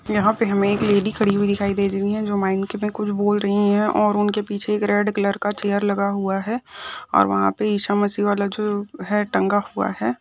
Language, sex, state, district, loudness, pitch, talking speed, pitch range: Hindi, female, Jharkhand, Sahebganj, -21 LUFS, 205 Hz, 235 wpm, 200-210 Hz